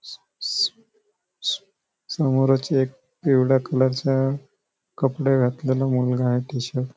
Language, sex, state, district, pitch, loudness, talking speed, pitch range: Marathi, male, Maharashtra, Nagpur, 135 Hz, -22 LUFS, 105 wpm, 130-140 Hz